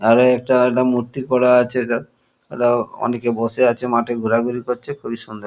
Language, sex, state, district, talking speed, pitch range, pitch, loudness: Bengali, male, West Bengal, Kolkata, 175 wpm, 115-125 Hz, 120 Hz, -18 LUFS